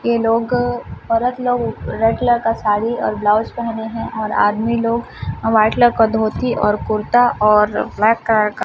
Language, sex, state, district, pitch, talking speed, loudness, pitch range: Hindi, male, Chhattisgarh, Raipur, 225 Hz, 180 wpm, -17 LUFS, 215-235 Hz